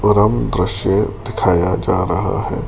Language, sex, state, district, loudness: Hindi, male, Rajasthan, Jaipur, -17 LUFS